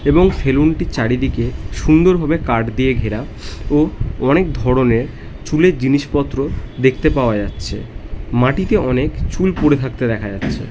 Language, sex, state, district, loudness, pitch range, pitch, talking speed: Bengali, male, West Bengal, North 24 Parganas, -16 LUFS, 115-150 Hz, 130 Hz, 130 wpm